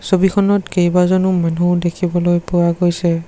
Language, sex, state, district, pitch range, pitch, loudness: Assamese, male, Assam, Sonitpur, 175-185 Hz, 175 Hz, -15 LUFS